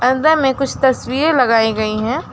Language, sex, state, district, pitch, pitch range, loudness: Hindi, female, West Bengal, Alipurduar, 255 Hz, 230-275 Hz, -15 LUFS